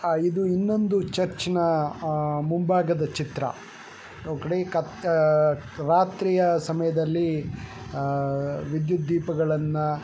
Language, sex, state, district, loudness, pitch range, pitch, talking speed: Kannada, male, Karnataka, Chamarajanagar, -25 LUFS, 150-175 Hz, 160 Hz, 100 wpm